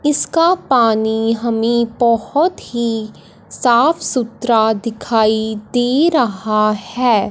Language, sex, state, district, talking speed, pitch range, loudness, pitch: Hindi, male, Punjab, Fazilka, 90 wpm, 220-250 Hz, -16 LUFS, 230 Hz